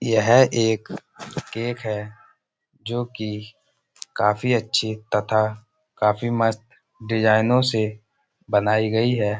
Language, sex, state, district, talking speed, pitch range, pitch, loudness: Hindi, male, Uttar Pradesh, Budaun, 100 wpm, 105-120 Hz, 110 Hz, -22 LUFS